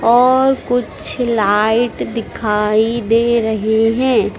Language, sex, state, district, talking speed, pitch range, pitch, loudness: Hindi, female, Madhya Pradesh, Dhar, 95 wpm, 220-245 Hz, 230 Hz, -15 LUFS